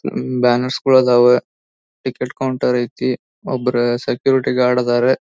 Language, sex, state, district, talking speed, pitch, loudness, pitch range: Kannada, male, Karnataka, Belgaum, 125 wpm, 125 Hz, -17 LUFS, 120-130 Hz